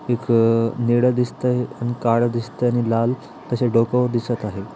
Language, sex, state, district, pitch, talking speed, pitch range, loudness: Marathi, male, Maharashtra, Aurangabad, 120 Hz, 165 wpm, 115-125 Hz, -20 LUFS